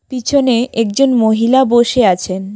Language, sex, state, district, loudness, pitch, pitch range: Bengali, female, West Bengal, Alipurduar, -13 LUFS, 240 Hz, 220-260 Hz